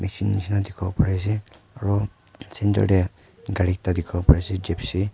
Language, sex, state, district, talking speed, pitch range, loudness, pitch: Nagamese, male, Nagaland, Kohima, 185 wpm, 95-100 Hz, -23 LUFS, 95 Hz